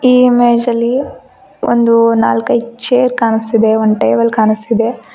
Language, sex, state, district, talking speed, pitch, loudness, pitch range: Kannada, female, Karnataka, Koppal, 115 wpm, 230 Hz, -12 LUFS, 220-240 Hz